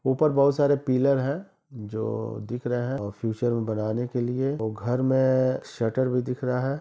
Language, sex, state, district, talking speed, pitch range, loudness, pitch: Hindi, male, Bihar, East Champaran, 200 wpm, 115-135 Hz, -26 LUFS, 125 Hz